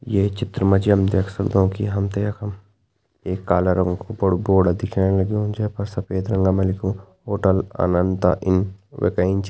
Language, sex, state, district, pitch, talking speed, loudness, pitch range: Hindi, male, Uttarakhand, Tehri Garhwal, 95 Hz, 185 wpm, -21 LUFS, 95-100 Hz